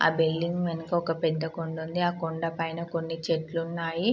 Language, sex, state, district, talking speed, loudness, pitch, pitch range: Telugu, female, Andhra Pradesh, Srikakulam, 160 wpm, -29 LUFS, 165 Hz, 165-170 Hz